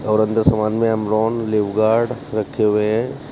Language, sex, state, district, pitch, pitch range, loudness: Hindi, male, Uttar Pradesh, Shamli, 110 Hz, 110-115 Hz, -18 LUFS